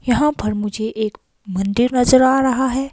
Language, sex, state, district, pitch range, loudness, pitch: Hindi, female, Himachal Pradesh, Shimla, 215-260 Hz, -17 LUFS, 245 Hz